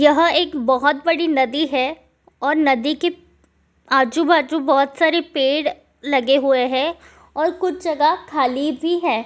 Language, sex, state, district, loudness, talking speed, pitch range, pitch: Hindi, female, Bihar, Supaul, -18 LUFS, 150 wpm, 270-330 Hz, 305 Hz